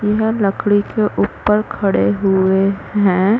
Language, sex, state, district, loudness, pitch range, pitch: Hindi, female, Chhattisgarh, Korba, -16 LUFS, 195-210 Hz, 205 Hz